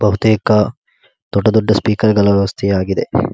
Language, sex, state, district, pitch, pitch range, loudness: Kannada, male, Karnataka, Dakshina Kannada, 105 Hz, 100-110 Hz, -14 LUFS